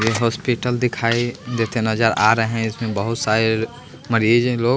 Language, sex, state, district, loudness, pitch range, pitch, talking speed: Hindi, male, Bihar, West Champaran, -19 LUFS, 110-120 Hz, 115 Hz, 165 wpm